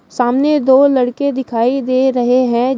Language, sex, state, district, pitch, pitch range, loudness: Hindi, female, Uttar Pradesh, Shamli, 255 Hz, 245-270 Hz, -13 LUFS